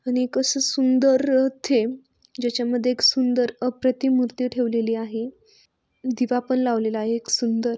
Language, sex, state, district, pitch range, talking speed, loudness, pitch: Marathi, female, Maharashtra, Sindhudurg, 240-260 Hz, 145 wpm, -22 LUFS, 250 Hz